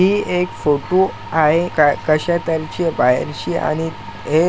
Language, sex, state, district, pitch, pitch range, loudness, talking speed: Marathi, male, Maharashtra, Chandrapur, 160 Hz, 155-180 Hz, -18 LUFS, 145 wpm